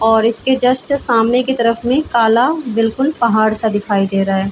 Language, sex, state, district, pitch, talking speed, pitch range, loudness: Hindi, female, Chhattisgarh, Bilaspur, 230 Hz, 210 wpm, 220-255 Hz, -14 LUFS